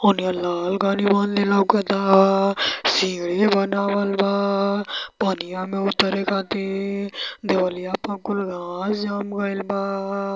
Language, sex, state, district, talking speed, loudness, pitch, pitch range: Bhojpuri, male, Uttar Pradesh, Varanasi, 110 wpm, -22 LUFS, 195 Hz, 195-200 Hz